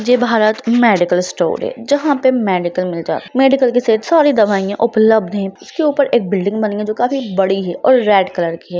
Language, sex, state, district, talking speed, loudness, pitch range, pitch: Hindi, female, Bihar, Lakhisarai, 220 wpm, -15 LUFS, 195-260 Hz, 220 Hz